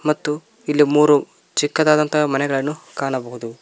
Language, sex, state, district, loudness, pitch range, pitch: Kannada, male, Karnataka, Koppal, -19 LUFS, 135-150 Hz, 150 Hz